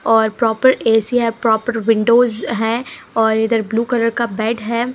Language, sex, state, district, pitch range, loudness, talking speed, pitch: Hindi, female, Punjab, Pathankot, 220-235 Hz, -16 LUFS, 170 wpm, 230 Hz